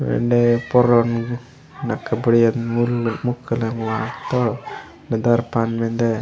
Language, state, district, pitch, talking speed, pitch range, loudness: Gondi, Chhattisgarh, Sukma, 115 Hz, 95 wpm, 115-120 Hz, -20 LUFS